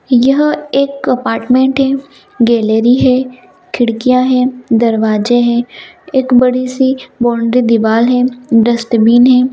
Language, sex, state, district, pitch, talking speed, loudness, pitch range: Hindi, female, Bihar, Gaya, 250 Hz, 105 wpm, -11 LUFS, 235-260 Hz